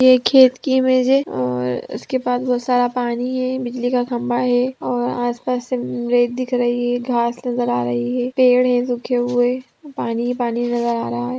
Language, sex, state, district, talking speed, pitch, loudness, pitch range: Magahi, female, Bihar, Gaya, 200 wpm, 245 Hz, -19 LUFS, 240-255 Hz